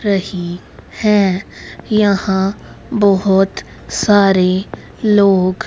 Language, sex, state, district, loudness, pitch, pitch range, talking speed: Hindi, female, Haryana, Rohtak, -15 LUFS, 195 Hz, 190-205 Hz, 65 wpm